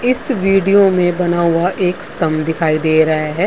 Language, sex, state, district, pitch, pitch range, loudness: Hindi, female, Bihar, Vaishali, 175 Hz, 160-195 Hz, -15 LUFS